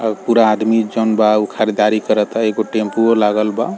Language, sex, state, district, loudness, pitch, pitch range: Bhojpuri, male, Bihar, East Champaran, -15 LUFS, 110 Hz, 105-115 Hz